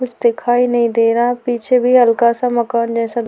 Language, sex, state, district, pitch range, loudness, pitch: Hindi, female, Uttar Pradesh, Hamirpur, 235-245 Hz, -15 LUFS, 235 Hz